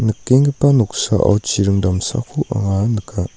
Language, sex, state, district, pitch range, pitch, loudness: Garo, male, Meghalaya, North Garo Hills, 100-125 Hz, 105 Hz, -16 LUFS